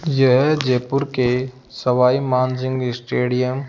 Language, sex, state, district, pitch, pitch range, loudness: Hindi, male, Rajasthan, Jaipur, 130 Hz, 125-135 Hz, -19 LUFS